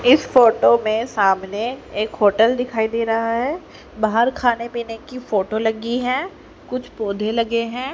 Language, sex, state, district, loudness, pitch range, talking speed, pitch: Hindi, female, Haryana, Jhajjar, -19 LUFS, 220-245 Hz, 160 wpm, 230 Hz